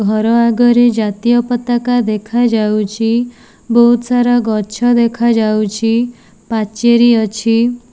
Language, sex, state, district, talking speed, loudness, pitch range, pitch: Odia, female, Odisha, Nuapada, 85 wpm, -13 LUFS, 220-240 Hz, 235 Hz